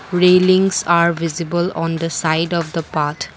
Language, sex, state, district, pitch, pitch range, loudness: English, female, Assam, Kamrup Metropolitan, 170 Hz, 165-180 Hz, -17 LUFS